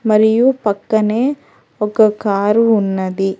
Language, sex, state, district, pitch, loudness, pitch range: Telugu, female, Telangana, Hyderabad, 215 Hz, -15 LUFS, 200-225 Hz